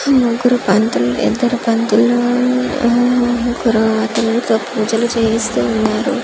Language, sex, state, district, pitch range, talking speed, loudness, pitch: Telugu, female, Andhra Pradesh, Manyam, 225-245 Hz, 115 wpm, -15 LUFS, 235 Hz